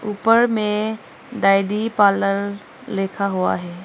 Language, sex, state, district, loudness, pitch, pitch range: Hindi, female, Arunachal Pradesh, Longding, -19 LUFS, 205 Hz, 195-220 Hz